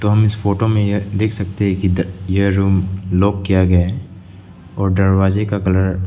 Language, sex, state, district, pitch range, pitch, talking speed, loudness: Hindi, male, Arunachal Pradesh, Lower Dibang Valley, 95-100 Hz, 95 Hz, 195 wpm, -17 LUFS